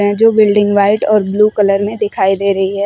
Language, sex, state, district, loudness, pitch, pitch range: Hindi, female, Uttar Pradesh, Shamli, -12 LUFS, 205 Hz, 200-210 Hz